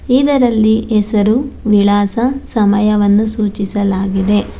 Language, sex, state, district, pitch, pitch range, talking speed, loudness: Kannada, female, Karnataka, Bangalore, 210 Hz, 205-230 Hz, 65 wpm, -13 LUFS